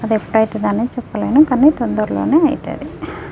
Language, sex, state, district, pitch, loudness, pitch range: Telugu, female, Telangana, Nalgonda, 235 Hz, -15 LUFS, 220-280 Hz